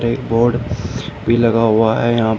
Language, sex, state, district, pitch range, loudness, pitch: Hindi, male, Uttar Pradesh, Shamli, 110-120 Hz, -16 LUFS, 115 Hz